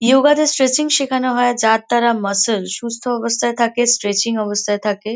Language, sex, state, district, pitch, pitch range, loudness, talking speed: Bengali, female, West Bengal, North 24 Parganas, 235 Hz, 215-250 Hz, -16 LUFS, 165 wpm